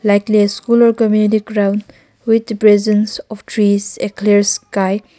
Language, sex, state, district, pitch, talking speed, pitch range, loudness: English, female, Nagaland, Kohima, 210 Hz, 150 wpm, 205-220 Hz, -14 LUFS